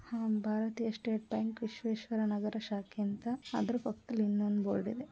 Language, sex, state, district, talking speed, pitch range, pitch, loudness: Kannada, female, Karnataka, Mysore, 165 wpm, 210-230 Hz, 220 Hz, -36 LUFS